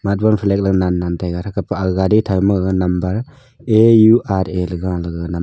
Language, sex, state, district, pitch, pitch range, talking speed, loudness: Wancho, male, Arunachal Pradesh, Longding, 95 Hz, 90-110 Hz, 155 wpm, -16 LUFS